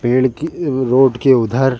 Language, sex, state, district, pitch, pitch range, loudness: Hindi, male, Uttar Pradesh, Jalaun, 130 Hz, 125-135 Hz, -15 LUFS